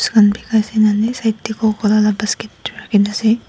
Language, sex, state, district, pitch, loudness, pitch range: Nagamese, female, Nagaland, Dimapur, 215 Hz, -16 LUFS, 210-220 Hz